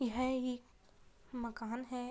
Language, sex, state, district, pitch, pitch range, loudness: Hindi, female, Jharkhand, Sahebganj, 250 Hz, 240-255 Hz, -40 LUFS